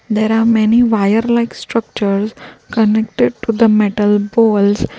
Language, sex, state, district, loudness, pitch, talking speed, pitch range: English, female, Gujarat, Valsad, -14 LUFS, 220 Hz, 130 wpm, 210-230 Hz